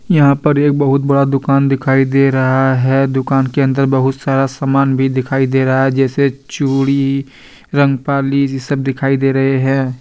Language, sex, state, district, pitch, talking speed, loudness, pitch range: Hindi, male, Jharkhand, Deoghar, 135 Hz, 180 wpm, -14 LUFS, 135-140 Hz